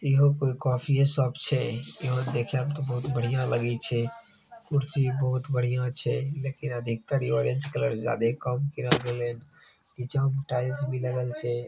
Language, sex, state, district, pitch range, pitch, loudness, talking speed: Maithili, male, Bihar, Begusarai, 120-140 Hz, 130 Hz, -27 LUFS, 170 wpm